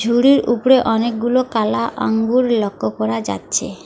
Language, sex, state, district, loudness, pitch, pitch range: Bengali, female, West Bengal, Alipurduar, -17 LUFS, 230 Hz, 205-250 Hz